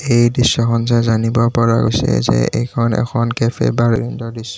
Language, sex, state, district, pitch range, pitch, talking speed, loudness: Assamese, male, Assam, Kamrup Metropolitan, 115-120 Hz, 115 Hz, 170 wpm, -16 LUFS